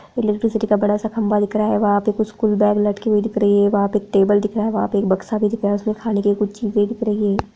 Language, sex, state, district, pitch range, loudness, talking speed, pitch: Hindi, female, Bihar, Darbhanga, 205-215 Hz, -18 LUFS, 325 wpm, 210 Hz